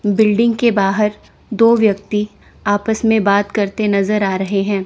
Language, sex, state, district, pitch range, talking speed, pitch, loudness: Hindi, female, Chandigarh, Chandigarh, 200-220 Hz, 160 wpm, 210 Hz, -16 LUFS